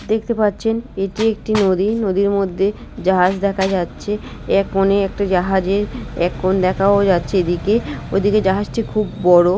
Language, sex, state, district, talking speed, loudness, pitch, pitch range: Bengali, female, West Bengal, North 24 Parganas, 140 wpm, -18 LUFS, 195 Hz, 190-210 Hz